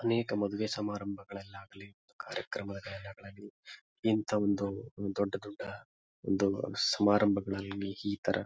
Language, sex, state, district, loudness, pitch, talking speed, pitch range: Kannada, male, Karnataka, Bijapur, -33 LUFS, 100 Hz, 85 wpm, 100-105 Hz